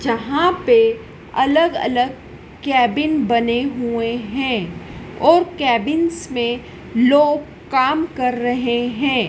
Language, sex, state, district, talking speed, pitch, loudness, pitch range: Hindi, female, Madhya Pradesh, Dhar, 105 wpm, 260 Hz, -18 LUFS, 240-300 Hz